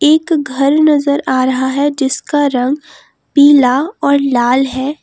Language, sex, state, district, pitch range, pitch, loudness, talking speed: Hindi, female, Jharkhand, Palamu, 260-295 Hz, 280 Hz, -12 LUFS, 145 wpm